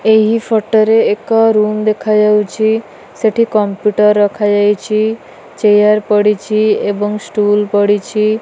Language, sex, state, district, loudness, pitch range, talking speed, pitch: Odia, female, Odisha, Malkangiri, -12 LUFS, 210-220 Hz, 100 wpm, 215 Hz